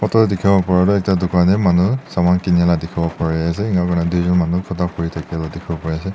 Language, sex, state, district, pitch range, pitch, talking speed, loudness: Nagamese, male, Nagaland, Dimapur, 85-95 Hz, 90 Hz, 245 wpm, -17 LUFS